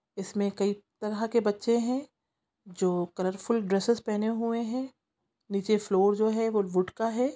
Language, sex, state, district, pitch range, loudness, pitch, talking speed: Hindi, female, Chhattisgarh, Sukma, 195-230 Hz, -29 LUFS, 215 Hz, 170 wpm